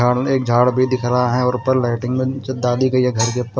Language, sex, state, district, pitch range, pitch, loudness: Hindi, male, Odisha, Malkangiri, 125-130 Hz, 125 Hz, -18 LUFS